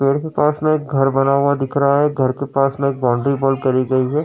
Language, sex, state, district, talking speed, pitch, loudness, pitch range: Hindi, male, Uttar Pradesh, Jyotiba Phule Nagar, 295 wpm, 140 Hz, -17 LUFS, 135-140 Hz